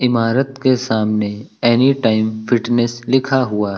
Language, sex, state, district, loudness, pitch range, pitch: Hindi, male, Uttar Pradesh, Lucknow, -16 LUFS, 110-130 Hz, 120 Hz